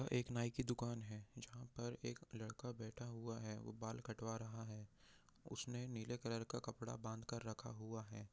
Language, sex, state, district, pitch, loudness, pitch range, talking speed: Hindi, male, Bihar, Jahanabad, 115 Hz, -49 LUFS, 110-120 Hz, 210 wpm